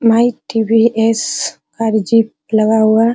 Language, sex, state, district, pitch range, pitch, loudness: Hindi, female, Bihar, Araria, 220-235 Hz, 225 Hz, -14 LUFS